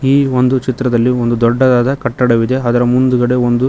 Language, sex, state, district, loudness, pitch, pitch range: Kannada, male, Karnataka, Koppal, -13 LUFS, 125 Hz, 120-130 Hz